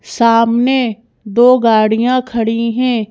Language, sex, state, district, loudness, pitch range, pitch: Hindi, female, Madhya Pradesh, Bhopal, -13 LUFS, 225-250 Hz, 230 Hz